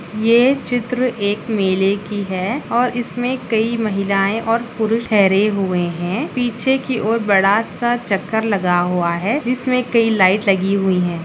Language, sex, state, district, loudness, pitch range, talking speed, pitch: Hindi, female, Chhattisgarh, Raigarh, -17 LUFS, 195-240 Hz, 160 wpm, 220 Hz